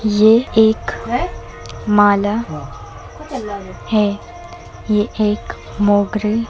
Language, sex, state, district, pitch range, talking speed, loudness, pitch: Hindi, female, Uttar Pradesh, Jalaun, 185-215 Hz, 75 wpm, -17 LUFS, 210 Hz